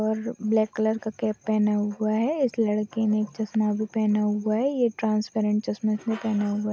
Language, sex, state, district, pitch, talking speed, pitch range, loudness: Hindi, female, Maharashtra, Chandrapur, 215 Hz, 195 wpm, 210-220 Hz, -25 LUFS